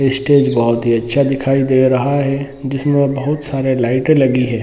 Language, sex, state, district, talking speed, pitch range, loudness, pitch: Hindi, male, Bihar, Sitamarhi, 180 wpm, 130-140 Hz, -15 LUFS, 135 Hz